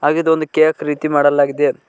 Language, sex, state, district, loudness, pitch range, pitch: Kannada, male, Karnataka, Koppal, -15 LUFS, 145-155 Hz, 150 Hz